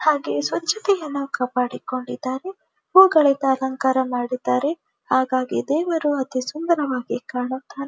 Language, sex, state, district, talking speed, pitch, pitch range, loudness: Kannada, female, Karnataka, Dharwad, 85 wpm, 275 Hz, 255-315 Hz, -21 LUFS